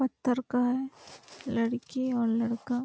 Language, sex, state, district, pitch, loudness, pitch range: Hindi, female, Uttar Pradesh, Hamirpur, 245 Hz, -30 LUFS, 235-260 Hz